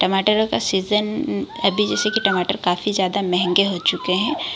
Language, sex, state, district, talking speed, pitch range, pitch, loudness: Hindi, female, Bihar, Kishanganj, 170 wpm, 180-210 Hz, 195 Hz, -19 LUFS